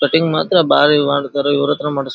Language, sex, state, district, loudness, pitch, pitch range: Kannada, male, Karnataka, Dharwad, -15 LUFS, 145 Hz, 140-150 Hz